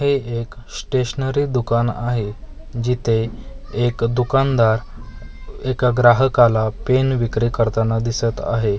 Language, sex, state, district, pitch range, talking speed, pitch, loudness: Marathi, male, Maharashtra, Mumbai Suburban, 115-125 Hz, 100 wpm, 120 Hz, -19 LUFS